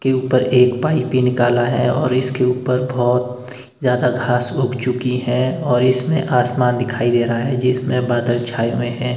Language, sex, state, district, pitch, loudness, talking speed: Hindi, male, Himachal Pradesh, Shimla, 125 Hz, -17 LUFS, 185 wpm